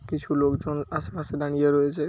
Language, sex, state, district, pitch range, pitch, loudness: Bengali, male, West Bengal, Paschim Medinipur, 145-150 Hz, 145 Hz, -26 LUFS